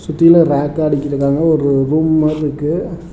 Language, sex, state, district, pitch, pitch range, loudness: Tamil, male, Tamil Nadu, Namakkal, 155 Hz, 145-165 Hz, -14 LUFS